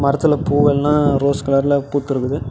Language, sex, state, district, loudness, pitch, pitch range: Tamil, male, Tamil Nadu, Namakkal, -17 LUFS, 140 Hz, 140-145 Hz